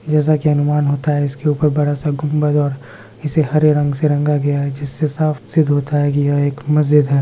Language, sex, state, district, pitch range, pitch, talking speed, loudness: Hindi, male, Bihar, Muzaffarpur, 145-150 Hz, 145 Hz, 225 wpm, -16 LUFS